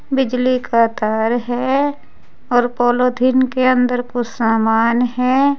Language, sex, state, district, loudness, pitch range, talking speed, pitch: Hindi, female, Uttar Pradesh, Saharanpur, -16 LUFS, 235-255 Hz, 120 wpm, 245 Hz